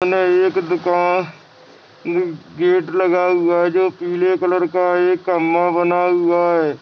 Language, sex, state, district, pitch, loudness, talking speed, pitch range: Hindi, male, Chhattisgarh, Bastar, 180 Hz, -17 LUFS, 130 wpm, 175-185 Hz